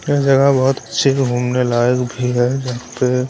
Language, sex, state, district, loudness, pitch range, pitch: Hindi, male, Maharashtra, Washim, -16 LUFS, 125-135 Hz, 125 Hz